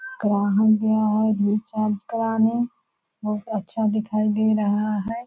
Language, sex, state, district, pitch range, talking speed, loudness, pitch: Hindi, female, Bihar, Purnia, 210-220 Hz, 125 wpm, -22 LUFS, 215 Hz